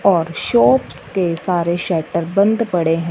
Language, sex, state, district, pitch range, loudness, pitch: Hindi, female, Punjab, Fazilka, 165-185 Hz, -17 LUFS, 170 Hz